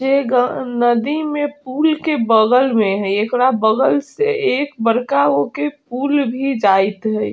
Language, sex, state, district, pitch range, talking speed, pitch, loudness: Bajjika, female, Bihar, Vaishali, 225-285 Hz, 165 wpm, 260 Hz, -16 LUFS